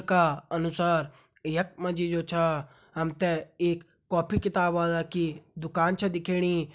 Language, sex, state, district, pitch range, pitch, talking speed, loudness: Hindi, male, Uttarakhand, Uttarkashi, 165-175 Hz, 170 Hz, 150 wpm, -28 LUFS